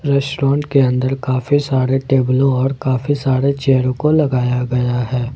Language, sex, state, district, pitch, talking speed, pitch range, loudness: Hindi, male, Jharkhand, Ranchi, 135 Hz, 155 wpm, 130-140 Hz, -16 LUFS